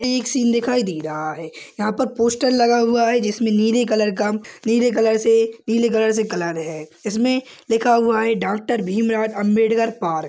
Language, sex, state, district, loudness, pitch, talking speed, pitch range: Hindi, male, Uttar Pradesh, Budaun, -19 LUFS, 225 Hz, 190 wpm, 210-235 Hz